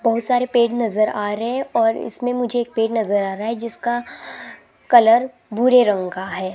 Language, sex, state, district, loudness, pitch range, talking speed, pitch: Hindi, female, Rajasthan, Jaipur, -19 LUFS, 215-245 Hz, 200 wpm, 230 Hz